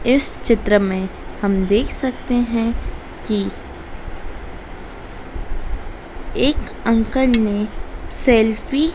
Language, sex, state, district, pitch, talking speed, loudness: Hindi, female, Madhya Pradesh, Dhar, 200 Hz, 85 wpm, -19 LUFS